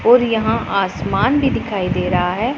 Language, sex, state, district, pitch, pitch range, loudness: Hindi, female, Punjab, Pathankot, 225 Hz, 185-245 Hz, -17 LUFS